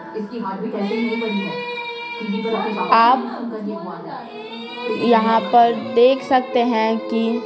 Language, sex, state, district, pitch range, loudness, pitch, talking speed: Hindi, female, Bihar, Patna, 220-240 Hz, -19 LUFS, 230 Hz, 55 wpm